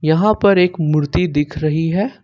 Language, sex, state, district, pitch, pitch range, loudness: Hindi, male, Jharkhand, Ranchi, 165 Hz, 155-195 Hz, -16 LUFS